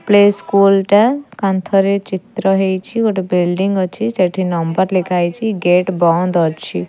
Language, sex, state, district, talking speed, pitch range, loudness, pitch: Odia, female, Odisha, Khordha, 140 wpm, 180-205 Hz, -15 LUFS, 190 Hz